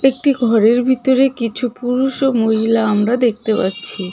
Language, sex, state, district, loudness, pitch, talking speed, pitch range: Bengali, female, West Bengal, Cooch Behar, -16 LUFS, 245 Hz, 145 wpm, 220-260 Hz